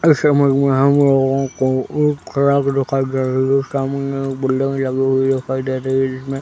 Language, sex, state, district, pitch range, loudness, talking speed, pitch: Hindi, male, Chhattisgarh, Raigarh, 130-140 Hz, -17 LUFS, 205 wpm, 135 Hz